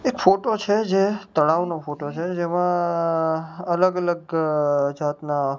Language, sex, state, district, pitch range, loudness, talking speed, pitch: Gujarati, male, Gujarat, Gandhinagar, 150-185 Hz, -22 LUFS, 130 wpm, 170 Hz